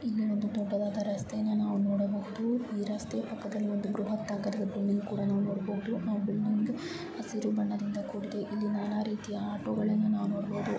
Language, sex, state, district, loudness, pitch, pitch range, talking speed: Kannada, female, Karnataka, Bijapur, -32 LUFS, 210 Hz, 205-215 Hz, 150 wpm